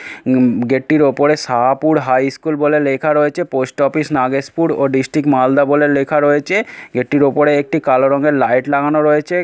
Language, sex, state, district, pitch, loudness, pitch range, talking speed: Bengali, male, West Bengal, Malda, 145 Hz, -14 LUFS, 135-150 Hz, 160 wpm